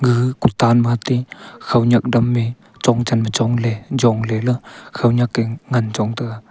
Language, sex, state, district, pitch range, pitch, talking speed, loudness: Wancho, male, Arunachal Pradesh, Longding, 115-120 Hz, 120 Hz, 165 wpm, -18 LUFS